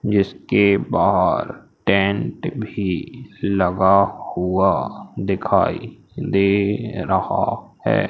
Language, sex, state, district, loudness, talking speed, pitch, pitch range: Hindi, male, Madhya Pradesh, Umaria, -20 LUFS, 75 wpm, 100 Hz, 95-100 Hz